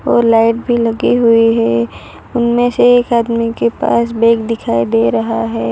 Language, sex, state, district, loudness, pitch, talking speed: Hindi, female, Gujarat, Valsad, -13 LUFS, 230 Hz, 180 wpm